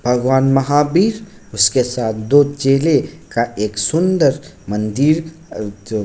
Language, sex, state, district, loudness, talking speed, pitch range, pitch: Hindi, male, Bihar, Kishanganj, -16 LUFS, 140 wpm, 110-155 Hz, 135 Hz